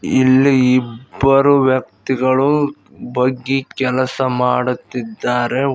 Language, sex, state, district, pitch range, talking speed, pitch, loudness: Kannada, male, Karnataka, Koppal, 125-135 Hz, 65 wpm, 130 Hz, -16 LUFS